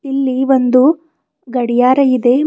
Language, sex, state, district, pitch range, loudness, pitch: Kannada, female, Karnataka, Bidar, 250-275 Hz, -13 LUFS, 265 Hz